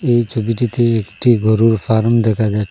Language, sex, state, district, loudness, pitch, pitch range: Bengali, male, Assam, Hailakandi, -15 LUFS, 115 Hz, 110-120 Hz